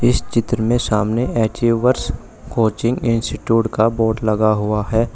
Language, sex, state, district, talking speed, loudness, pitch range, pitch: Hindi, male, Uttar Pradesh, Shamli, 140 wpm, -18 LUFS, 110-120 Hz, 115 Hz